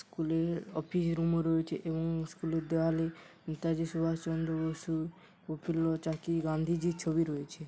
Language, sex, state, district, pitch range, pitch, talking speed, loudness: Bengali, male, West Bengal, Paschim Medinipur, 160-165 Hz, 165 Hz, 135 wpm, -34 LUFS